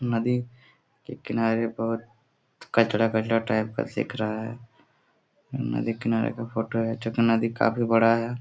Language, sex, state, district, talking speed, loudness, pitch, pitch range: Hindi, male, Jharkhand, Sahebganj, 155 wpm, -26 LUFS, 115 Hz, 115-120 Hz